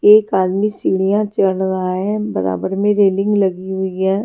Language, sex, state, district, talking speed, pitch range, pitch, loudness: Hindi, female, Haryana, Charkhi Dadri, 170 wpm, 190-205 Hz, 195 Hz, -17 LUFS